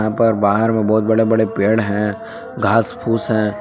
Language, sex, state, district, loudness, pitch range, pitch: Hindi, male, Jharkhand, Palamu, -17 LUFS, 105-110 Hz, 110 Hz